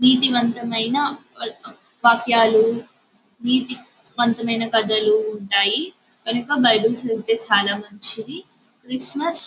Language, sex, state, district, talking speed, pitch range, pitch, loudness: Telugu, female, Andhra Pradesh, Anantapur, 80 wpm, 225-250 Hz, 235 Hz, -18 LUFS